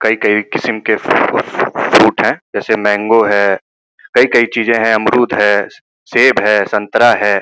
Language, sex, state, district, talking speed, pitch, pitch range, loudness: Hindi, male, Uttar Pradesh, Gorakhpur, 155 wpm, 105 Hz, 105-115 Hz, -12 LUFS